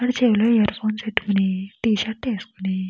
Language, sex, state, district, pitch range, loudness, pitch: Telugu, female, Andhra Pradesh, Krishna, 195-225 Hz, -22 LUFS, 215 Hz